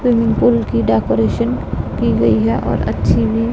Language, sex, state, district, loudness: Hindi, female, Punjab, Pathankot, -16 LUFS